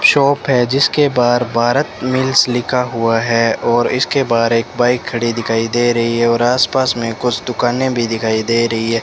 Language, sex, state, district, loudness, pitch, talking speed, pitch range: Hindi, male, Rajasthan, Bikaner, -15 LUFS, 120 Hz, 195 wpm, 115-125 Hz